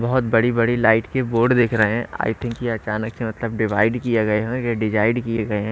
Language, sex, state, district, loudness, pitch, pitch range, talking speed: Hindi, male, Haryana, Rohtak, -20 LUFS, 115 Hz, 110-120 Hz, 240 wpm